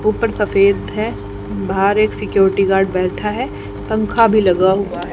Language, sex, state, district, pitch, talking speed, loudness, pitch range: Hindi, female, Haryana, Charkhi Dadri, 195 Hz, 165 wpm, -16 LUFS, 185-215 Hz